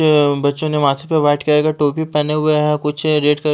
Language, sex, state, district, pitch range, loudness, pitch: Hindi, male, Haryana, Rohtak, 145-155 Hz, -16 LUFS, 150 Hz